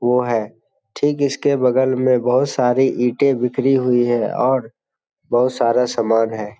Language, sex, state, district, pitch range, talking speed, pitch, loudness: Hindi, male, Bihar, Jamui, 120-130 Hz, 155 wpm, 125 Hz, -18 LUFS